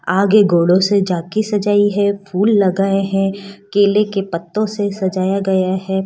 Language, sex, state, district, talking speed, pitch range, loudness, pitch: Hindi, female, Rajasthan, Jaipur, 160 wpm, 190-205 Hz, -16 LUFS, 195 Hz